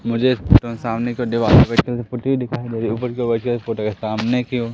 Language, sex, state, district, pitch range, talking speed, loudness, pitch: Hindi, male, Madhya Pradesh, Umaria, 115-125 Hz, 165 wpm, -19 LUFS, 120 Hz